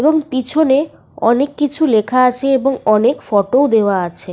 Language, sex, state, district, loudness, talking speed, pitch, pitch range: Bengali, female, Jharkhand, Sahebganj, -14 LUFS, 95 wpm, 260 Hz, 220-280 Hz